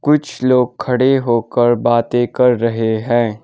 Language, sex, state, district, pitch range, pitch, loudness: Hindi, male, Sikkim, Gangtok, 115-125 Hz, 120 Hz, -15 LUFS